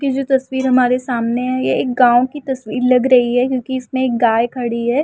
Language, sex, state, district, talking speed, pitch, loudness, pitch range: Hindi, female, Uttar Pradesh, Muzaffarnagar, 240 wpm, 250 Hz, -16 LUFS, 245-260 Hz